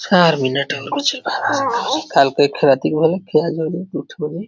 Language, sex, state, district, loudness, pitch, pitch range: Hindi, male, Uttar Pradesh, Varanasi, -17 LUFS, 160 Hz, 150-180 Hz